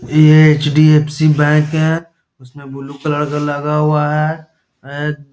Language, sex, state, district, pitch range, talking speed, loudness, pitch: Hindi, male, Bihar, Muzaffarpur, 145-155 Hz, 145 wpm, -13 LUFS, 150 Hz